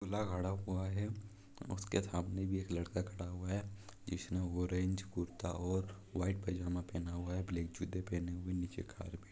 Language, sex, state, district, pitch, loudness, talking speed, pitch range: Hindi, male, Chhattisgarh, Raigarh, 90 Hz, -41 LUFS, 180 wpm, 90-95 Hz